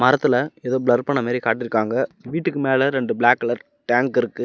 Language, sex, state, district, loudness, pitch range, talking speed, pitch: Tamil, male, Tamil Nadu, Namakkal, -20 LUFS, 120-130 Hz, 175 wpm, 125 Hz